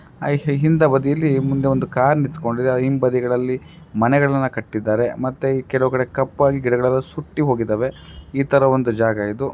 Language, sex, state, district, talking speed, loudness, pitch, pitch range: Kannada, male, Karnataka, Raichur, 130 wpm, -19 LUFS, 130 Hz, 125-140 Hz